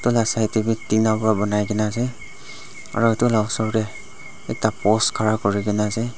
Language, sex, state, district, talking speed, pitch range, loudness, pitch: Nagamese, male, Nagaland, Dimapur, 175 wpm, 105-120 Hz, -21 LUFS, 110 Hz